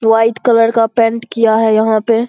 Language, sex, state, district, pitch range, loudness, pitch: Hindi, female, Bihar, Saharsa, 225-230 Hz, -12 LUFS, 225 Hz